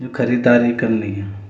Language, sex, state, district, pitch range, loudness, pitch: Garhwali, male, Uttarakhand, Uttarkashi, 100-120 Hz, -17 LUFS, 120 Hz